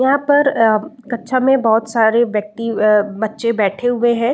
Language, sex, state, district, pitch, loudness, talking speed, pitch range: Hindi, female, Bihar, Saran, 230 Hz, -15 LUFS, 180 wpm, 220-255 Hz